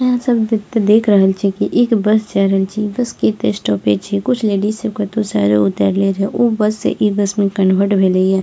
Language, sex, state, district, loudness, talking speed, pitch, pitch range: Maithili, female, Bihar, Purnia, -15 LUFS, 250 wpm, 200 Hz, 190-215 Hz